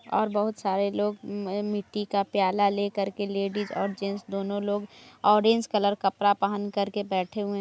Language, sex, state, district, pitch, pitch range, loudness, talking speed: Hindi, female, Bihar, Madhepura, 205 Hz, 200-205 Hz, -27 LUFS, 190 wpm